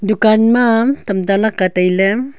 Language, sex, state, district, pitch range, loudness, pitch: Wancho, female, Arunachal Pradesh, Longding, 195-230 Hz, -14 LUFS, 215 Hz